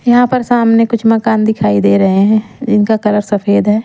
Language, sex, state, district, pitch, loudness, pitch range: Hindi, female, Madhya Pradesh, Umaria, 220 Hz, -11 LUFS, 205-230 Hz